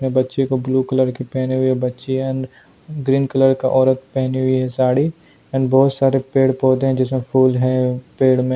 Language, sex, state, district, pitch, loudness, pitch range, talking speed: Hindi, male, Goa, North and South Goa, 130 Hz, -18 LUFS, 130-135 Hz, 180 wpm